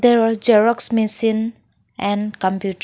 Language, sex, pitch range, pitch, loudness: English, female, 205-230 Hz, 220 Hz, -16 LUFS